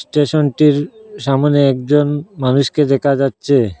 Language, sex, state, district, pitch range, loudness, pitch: Bengali, male, Assam, Hailakandi, 135-150 Hz, -15 LUFS, 140 Hz